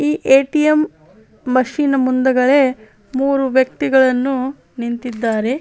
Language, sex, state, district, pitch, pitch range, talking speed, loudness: Kannada, female, Karnataka, Bellary, 260 Hz, 250-275 Hz, 85 wpm, -16 LUFS